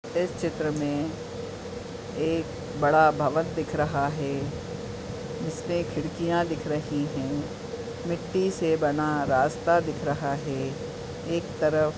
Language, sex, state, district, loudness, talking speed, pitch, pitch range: Hindi, male, Uttar Pradesh, Ghazipur, -28 LUFS, 125 wpm, 155 Hz, 145-160 Hz